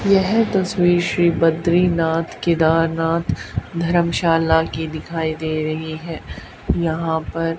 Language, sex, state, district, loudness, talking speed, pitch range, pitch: Hindi, female, Haryana, Charkhi Dadri, -19 LUFS, 105 wpm, 160-175 Hz, 165 Hz